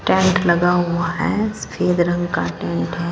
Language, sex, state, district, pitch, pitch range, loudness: Hindi, female, Punjab, Fazilka, 175 Hz, 170-180 Hz, -19 LUFS